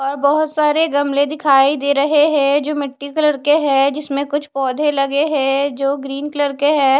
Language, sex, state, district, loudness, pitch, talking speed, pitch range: Hindi, female, Odisha, Khordha, -16 LUFS, 285 Hz, 195 wpm, 275-295 Hz